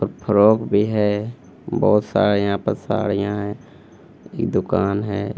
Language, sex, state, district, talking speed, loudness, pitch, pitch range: Hindi, male, Bihar, Gaya, 135 wpm, -20 LUFS, 105 Hz, 100-110 Hz